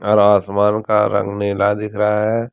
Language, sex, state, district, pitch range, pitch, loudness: Hindi, male, Jharkhand, Deoghar, 100-105 Hz, 105 Hz, -16 LUFS